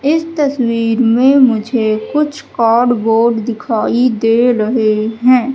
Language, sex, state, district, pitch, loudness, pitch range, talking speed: Hindi, female, Madhya Pradesh, Katni, 235 Hz, -13 LUFS, 225-260 Hz, 110 wpm